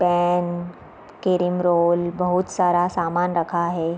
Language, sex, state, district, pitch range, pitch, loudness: Hindi, female, Bihar, Darbhanga, 175-180 Hz, 175 Hz, -21 LUFS